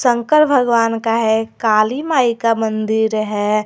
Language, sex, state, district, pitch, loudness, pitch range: Hindi, female, Jharkhand, Garhwa, 225 Hz, -16 LUFS, 220-240 Hz